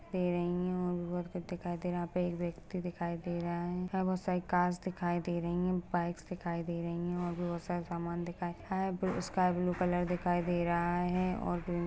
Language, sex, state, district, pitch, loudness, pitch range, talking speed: Hindi, female, Chhattisgarh, Bastar, 175 Hz, -35 LUFS, 175-180 Hz, 230 wpm